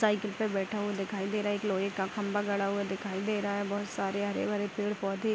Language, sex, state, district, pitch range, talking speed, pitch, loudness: Hindi, female, Bihar, Vaishali, 195-205 Hz, 255 wpm, 205 Hz, -32 LUFS